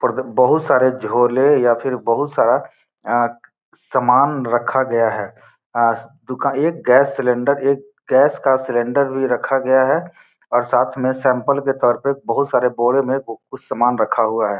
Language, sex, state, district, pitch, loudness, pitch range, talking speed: Hindi, male, Bihar, Gopalganj, 130 Hz, -17 LUFS, 120-135 Hz, 165 wpm